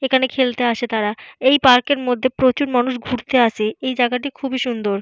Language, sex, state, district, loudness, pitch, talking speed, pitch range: Bengali, female, West Bengal, Purulia, -18 LUFS, 250 Hz, 180 wpm, 240-260 Hz